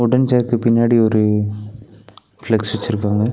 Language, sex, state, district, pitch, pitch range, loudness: Tamil, male, Tamil Nadu, Nilgiris, 110 Hz, 105-120 Hz, -17 LUFS